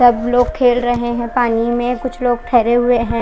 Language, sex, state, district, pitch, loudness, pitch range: Hindi, female, Odisha, Khordha, 240 Hz, -15 LUFS, 235-245 Hz